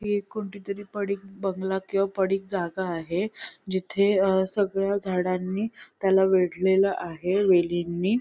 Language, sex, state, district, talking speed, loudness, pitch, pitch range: Marathi, female, Maharashtra, Sindhudurg, 125 wpm, -26 LUFS, 190 Hz, 185-200 Hz